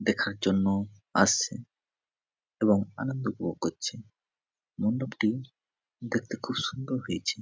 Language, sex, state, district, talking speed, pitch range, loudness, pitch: Bengali, male, West Bengal, Jhargram, 105 wpm, 100-130 Hz, -29 LUFS, 105 Hz